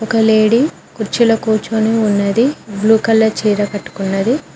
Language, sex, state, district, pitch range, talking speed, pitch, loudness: Telugu, female, Telangana, Mahabubabad, 205-225 Hz, 105 wpm, 220 Hz, -14 LUFS